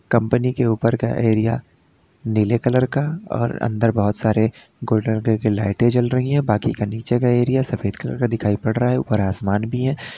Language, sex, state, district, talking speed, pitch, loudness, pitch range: Hindi, male, Uttar Pradesh, Lalitpur, 205 wpm, 115 Hz, -20 LUFS, 110-125 Hz